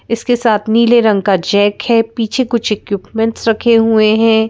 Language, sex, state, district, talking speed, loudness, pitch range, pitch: Hindi, female, Madhya Pradesh, Bhopal, 175 wpm, -13 LUFS, 215-230 Hz, 225 Hz